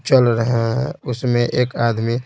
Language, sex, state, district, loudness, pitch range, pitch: Hindi, male, Bihar, Patna, -18 LUFS, 115-125 Hz, 120 Hz